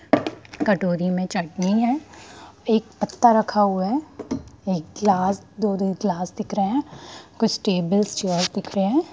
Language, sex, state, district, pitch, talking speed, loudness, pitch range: Hindi, female, Bihar, Sitamarhi, 200 Hz, 145 wpm, -23 LUFS, 190-225 Hz